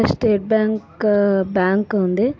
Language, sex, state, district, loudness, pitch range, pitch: Telugu, female, Andhra Pradesh, Anantapur, -18 LUFS, 195-215 Hz, 205 Hz